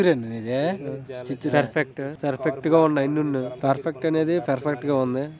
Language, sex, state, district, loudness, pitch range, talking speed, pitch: Telugu, male, Andhra Pradesh, Srikakulam, -24 LUFS, 135-155 Hz, 100 wpm, 145 Hz